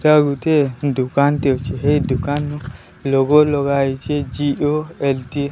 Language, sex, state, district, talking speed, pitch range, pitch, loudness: Odia, male, Odisha, Sambalpur, 120 wpm, 135-145 Hz, 140 Hz, -18 LUFS